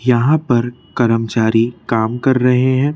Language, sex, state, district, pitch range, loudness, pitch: Hindi, male, Madhya Pradesh, Bhopal, 115-130 Hz, -15 LUFS, 120 Hz